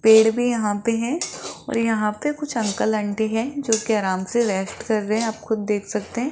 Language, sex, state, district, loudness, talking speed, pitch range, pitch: Hindi, female, Rajasthan, Jaipur, -22 LUFS, 235 wpm, 210-235 Hz, 220 Hz